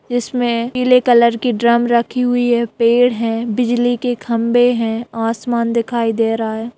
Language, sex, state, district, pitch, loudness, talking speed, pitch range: Hindi, female, Bihar, Saharsa, 235 Hz, -16 LUFS, 170 wpm, 230-245 Hz